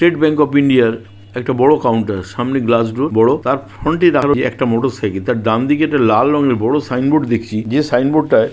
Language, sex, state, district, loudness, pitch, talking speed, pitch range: Bengali, male, West Bengal, Purulia, -15 LUFS, 125 Hz, 160 wpm, 115-145 Hz